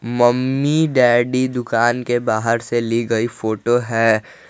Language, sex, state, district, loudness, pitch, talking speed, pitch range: Hindi, male, Jharkhand, Garhwa, -18 LUFS, 120 Hz, 135 wpm, 115-125 Hz